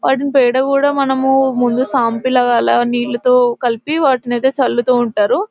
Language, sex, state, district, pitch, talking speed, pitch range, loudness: Telugu, female, Telangana, Nalgonda, 255 Hz, 140 wpm, 240-270 Hz, -14 LUFS